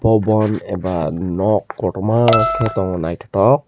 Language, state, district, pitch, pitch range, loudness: Kokborok, Tripura, Dhalai, 105 Hz, 90-110 Hz, -17 LUFS